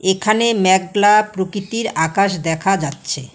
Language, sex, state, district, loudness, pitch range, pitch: Bengali, female, West Bengal, Alipurduar, -16 LUFS, 165-210 Hz, 195 Hz